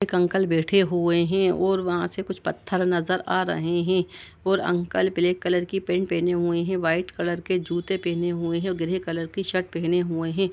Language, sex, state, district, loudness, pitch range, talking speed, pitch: Hindi, male, Uttar Pradesh, Jalaun, -24 LUFS, 170-185 Hz, 215 wpm, 180 Hz